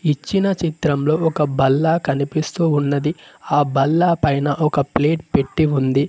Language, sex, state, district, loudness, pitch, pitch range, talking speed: Telugu, male, Telangana, Mahabubabad, -18 LUFS, 150 Hz, 140-160 Hz, 130 wpm